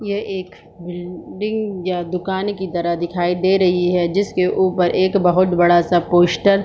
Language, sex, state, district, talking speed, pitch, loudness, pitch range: Hindi, female, Bihar, East Champaran, 170 wpm, 180 Hz, -18 LUFS, 175-195 Hz